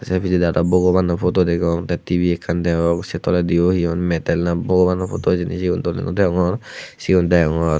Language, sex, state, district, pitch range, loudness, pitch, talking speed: Chakma, male, Tripura, Unakoti, 85-90 Hz, -18 LUFS, 90 Hz, 190 wpm